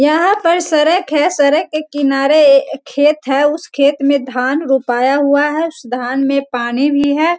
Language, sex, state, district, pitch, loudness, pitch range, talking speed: Hindi, female, Bihar, Sitamarhi, 285 Hz, -14 LUFS, 275-310 Hz, 180 wpm